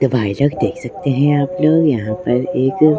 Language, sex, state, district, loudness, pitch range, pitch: Hindi, male, Bihar, West Champaran, -16 LUFS, 130-150 Hz, 140 Hz